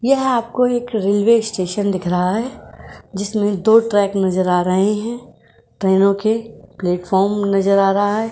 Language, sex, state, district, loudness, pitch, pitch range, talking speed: Hindi, female, Uttar Pradesh, Jyotiba Phule Nagar, -17 LUFS, 205 Hz, 190-225 Hz, 150 wpm